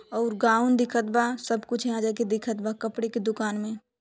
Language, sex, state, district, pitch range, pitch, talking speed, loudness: Bhojpuri, female, Uttar Pradesh, Deoria, 220-240 Hz, 230 Hz, 225 wpm, -26 LUFS